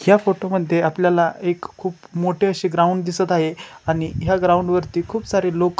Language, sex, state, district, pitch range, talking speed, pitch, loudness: Marathi, male, Maharashtra, Chandrapur, 170-190 Hz, 185 wpm, 180 Hz, -20 LUFS